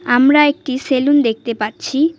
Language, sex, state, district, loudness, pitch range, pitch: Bengali, female, West Bengal, Cooch Behar, -15 LUFS, 245-290 Hz, 265 Hz